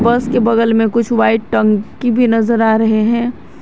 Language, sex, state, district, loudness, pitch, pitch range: Hindi, female, Jharkhand, Garhwa, -14 LUFS, 230 Hz, 225-240 Hz